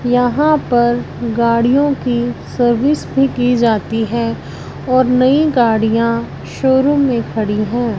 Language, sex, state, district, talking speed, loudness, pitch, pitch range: Hindi, female, Punjab, Fazilka, 120 wpm, -15 LUFS, 240 Hz, 230-260 Hz